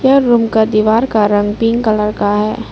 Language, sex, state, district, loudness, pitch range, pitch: Hindi, female, Arunachal Pradesh, Lower Dibang Valley, -13 LUFS, 210-230 Hz, 220 Hz